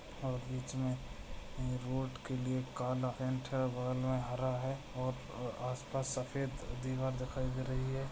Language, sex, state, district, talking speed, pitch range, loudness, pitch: Hindi, male, Bihar, Madhepura, 160 wpm, 125-130 Hz, -39 LUFS, 130 Hz